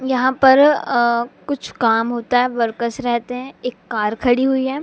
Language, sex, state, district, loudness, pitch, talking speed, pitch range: Hindi, female, Madhya Pradesh, Katni, -17 LUFS, 245 Hz, 185 wpm, 235-265 Hz